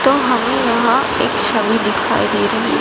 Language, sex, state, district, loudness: Hindi, female, Gujarat, Gandhinagar, -15 LUFS